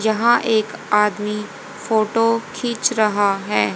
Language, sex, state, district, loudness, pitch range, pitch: Hindi, female, Haryana, Jhajjar, -19 LUFS, 210-230 Hz, 215 Hz